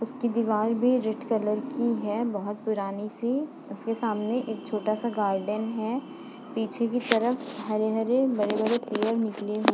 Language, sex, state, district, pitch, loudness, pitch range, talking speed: Hindi, female, Uttar Pradesh, Budaun, 225 Hz, -28 LUFS, 215-240 Hz, 165 wpm